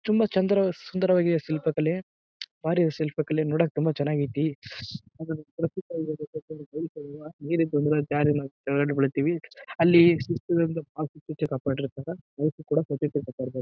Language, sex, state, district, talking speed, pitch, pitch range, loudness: Kannada, male, Karnataka, Bijapur, 100 wpm, 155 Hz, 145-165 Hz, -26 LUFS